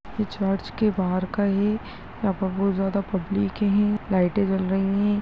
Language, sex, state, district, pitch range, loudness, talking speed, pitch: Hindi, male, Chhattisgarh, Balrampur, 190-205 Hz, -24 LUFS, 185 wpm, 195 Hz